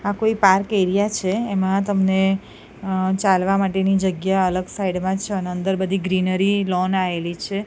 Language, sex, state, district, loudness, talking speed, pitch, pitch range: Gujarati, female, Gujarat, Gandhinagar, -20 LUFS, 170 wpm, 190 Hz, 185-195 Hz